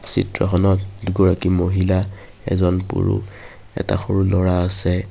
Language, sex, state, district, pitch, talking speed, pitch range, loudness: Assamese, male, Assam, Kamrup Metropolitan, 95 Hz, 105 wpm, 90-100 Hz, -19 LUFS